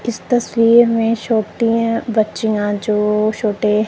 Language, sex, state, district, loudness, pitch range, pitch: Hindi, male, Punjab, Kapurthala, -16 LUFS, 210-230 Hz, 220 Hz